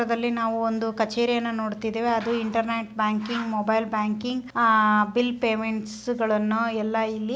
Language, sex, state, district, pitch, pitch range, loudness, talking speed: Kannada, female, Karnataka, Belgaum, 225 Hz, 220-235 Hz, -25 LUFS, 145 wpm